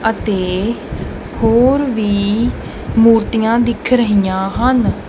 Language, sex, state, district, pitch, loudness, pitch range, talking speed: Punjabi, male, Punjab, Kapurthala, 225 Hz, -15 LUFS, 205-235 Hz, 85 wpm